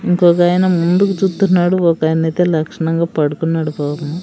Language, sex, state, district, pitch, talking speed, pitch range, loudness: Telugu, female, Andhra Pradesh, Sri Satya Sai, 170 Hz, 100 wpm, 160-180 Hz, -15 LUFS